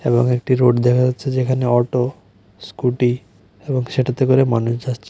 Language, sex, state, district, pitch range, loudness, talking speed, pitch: Bengali, male, Tripura, West Tripura, 115-130 Hz, -18 LUFS, 155 wpm, 125 Hz